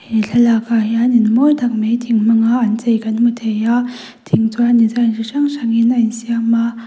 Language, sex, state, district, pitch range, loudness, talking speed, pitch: Mizo, female, Mizoram, Aizawl, 225-240 Hz, -15 LUFS, 235 wpm, 230 Hz